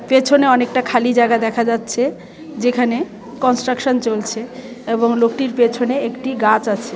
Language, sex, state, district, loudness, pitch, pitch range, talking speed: Bengali, female, Tripura, West Tripura, -17 LUFS, 245 Hz, 230-255 Hz, 140 wpm